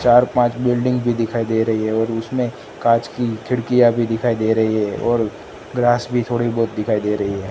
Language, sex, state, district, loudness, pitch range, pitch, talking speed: Hindi, male, Gujarat, Gandhinagar, -19 LUFS, 110-120 Hz, 115 Hz, 215 wpm